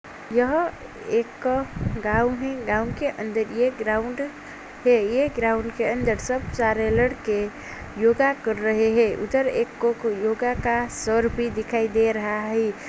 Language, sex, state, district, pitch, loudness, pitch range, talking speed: Hindi, female, Uttar Pradesh, Jalaun, 230 Hz, -23 LUFS, 220-255 Hz, 155 wpm